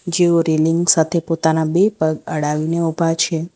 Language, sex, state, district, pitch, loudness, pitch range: Gujarati, female, Gujarat, Valsad, 165 Hz, -17 LUFS, 160-170 Hz